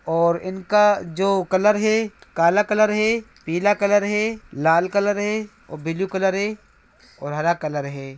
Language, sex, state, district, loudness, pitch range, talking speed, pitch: Hindi, male, Bihar, Araria, -21 LUFS, 170-210 Hz, 160 wpm, 195 Hz